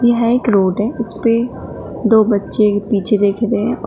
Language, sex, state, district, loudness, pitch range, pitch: Hindi, female, Uttar Pradesh, Shamli, -15 LUFS, 205-235 Hz, 220 Hz